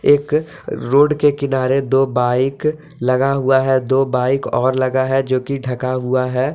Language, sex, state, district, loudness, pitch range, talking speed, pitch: Hindi, male, Jharkhand, Deoghar, -17 LUFS, 130-140 Hz, 175 wpm, 130 Hz